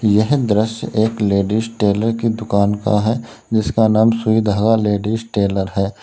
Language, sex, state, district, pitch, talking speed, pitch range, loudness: Hindi, male, Uttar Pradesh, Lalitpur, 110 Hz, 160 wpm, 105-115 Hz, -17 LUFS